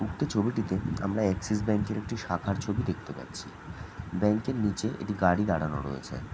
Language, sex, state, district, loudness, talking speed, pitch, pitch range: Bengali, male, West Bengal, Jhargram, -30 LUFS, 180 wpm, 105 Hz, 95-110 Hz